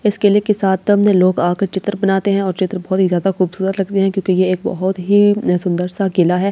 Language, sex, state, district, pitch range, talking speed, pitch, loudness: Hindi, female, Delhi, New Delhi, 185-200 Hz, 255 wpm, 190 Hz, -16 LUFS